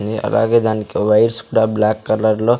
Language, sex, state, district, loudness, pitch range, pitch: Telugu, male, Andhra Pradesh, Sri Satya Sai, -16 LUFS, 105-115 Hz, 110 Hz